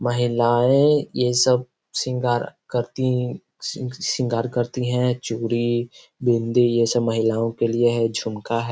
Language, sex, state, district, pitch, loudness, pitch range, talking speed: Hindi, male, Bihar, Gopalganj, 120 Hz, -22 LUFS, 115-125 Hz, 125 wpm